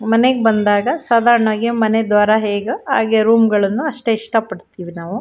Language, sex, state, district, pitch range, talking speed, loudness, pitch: Kannada, female, Karnataka, Shimoga, 210-235 Hz, 150 wpm, -15 LUFS, 220 Hz